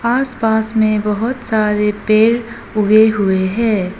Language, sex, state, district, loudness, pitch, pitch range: Hindi, female, Arunachal Pradesh, Lower Dibang Valley, -15 LUFS, 215 Hz, 210-230 Hz